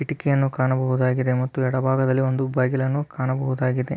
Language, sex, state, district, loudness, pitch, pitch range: Kannada, male, Karnataka, Belgaum, -22 LUFS, 130 Hz, 130-135 Hz